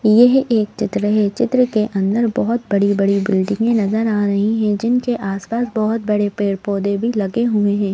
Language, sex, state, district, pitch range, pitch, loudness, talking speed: Hindi, female, Madhya Pradesh, Bhopal, 200-230 Hz, 215 Hz, -17 LUFS, 175 wpm